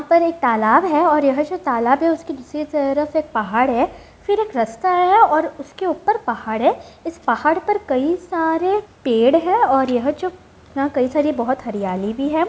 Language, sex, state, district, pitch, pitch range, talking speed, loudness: Hindi, female, Bihar, Jamui, 300 Hz, 250-335 Hz, 200 wpm, -18 LUFS